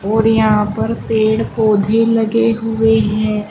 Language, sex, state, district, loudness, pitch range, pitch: Hindi, female, Uttar Pradesh, Shamli, -14 LUFS, 215-225 Hz, 220 Hz